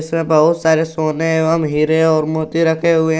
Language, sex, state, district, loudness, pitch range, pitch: Hindi, male, Jharkhand, Garhwa, -15 LUFS, 155-165 Hz, 160 Hz